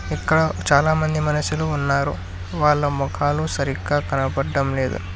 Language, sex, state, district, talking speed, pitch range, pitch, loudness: Telugu, male, Telangana, Hyderabad, 105 wpm, 130-150 Hz, 140 Hz, -21 LUFS